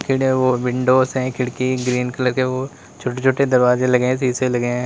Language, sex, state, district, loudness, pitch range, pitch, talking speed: Hindi, male, Uttar Pradesh, Lalitpur, -18 LUFS, 125-130 Hz, 130 Hz, 185 wpm